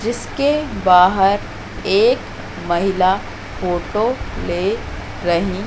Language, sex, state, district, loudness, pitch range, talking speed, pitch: Hindi, female, Madhya Pradesh, Katni, -18 LUFS, 180-235 Hz, 75 wpm, 195 Hz